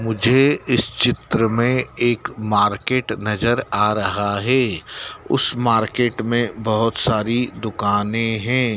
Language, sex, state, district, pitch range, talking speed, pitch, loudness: Hindi, male, Madhya Pradesh, Dhar, 110-120 Hz, 115 wpm, 115 Hz, -19 LUFS